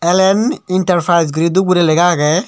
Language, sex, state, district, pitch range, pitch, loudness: Chakma, male, Tripura, Dhalai, 170-190 Hz, 175 Hz, -13 LUFS